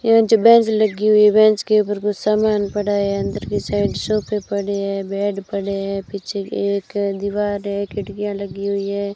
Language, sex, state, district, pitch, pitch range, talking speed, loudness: Hindi, female, Rajasthan, Bikaner, 205 Hz, 200-210 Hz, 205 wpm, -19 LUFS